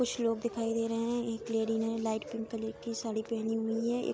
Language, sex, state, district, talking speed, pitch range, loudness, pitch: Hindi, female, Uttar Pradesh, Jalaun, 275 wpm, 225-230 Hz, -34 LUFS, 225 Hz